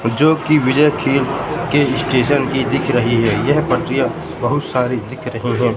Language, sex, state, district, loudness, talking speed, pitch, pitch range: Hindi, male, Madhya Pradesh, Katni, -16 LUFS, 175 wpm, 130 Hz, 120-145 Hz